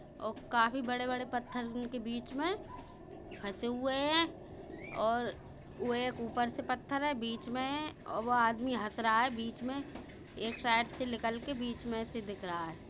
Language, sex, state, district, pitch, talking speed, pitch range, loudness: Bundeli, female, Uttar Pradesh, Budaun, 240 Hz, 185 wpm, 230-260 Hz, -35 LUFS